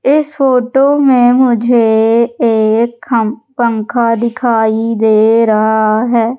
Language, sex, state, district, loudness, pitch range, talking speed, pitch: Hindi, female, Madhya Pradesh, Umaria, -11 LUFS, 220-250 Hz, 95 wpm, 235 Hz